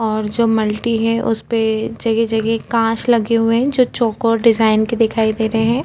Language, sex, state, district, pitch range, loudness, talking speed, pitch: Hindi, female, Chhattisgarh, Korba, 220-230 Hz, -16 LUFS, 205 wpm, 225 Hz